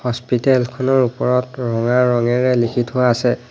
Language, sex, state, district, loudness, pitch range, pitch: Assamese, male, Assam, Hailakandi, -17 LUFS, 120-130 Hz, 125 Hz